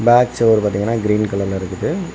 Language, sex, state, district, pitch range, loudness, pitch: Tamil, male, Tamil Nadu, Kanyakumari, 100-115 Hz, -17 LUFS, 105 Hz